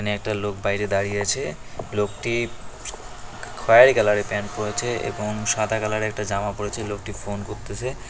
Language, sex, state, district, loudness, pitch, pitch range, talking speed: Bengali, male, West Bengal, Cooch Behar, -23 LUFS, 105 Hz, 100-110 Hz, 150 wpm